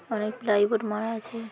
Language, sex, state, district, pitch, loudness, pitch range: Bengali, female, West Bengal, North 24 Parganas, 220 Hz, -27 LUFS, 210-225 Hz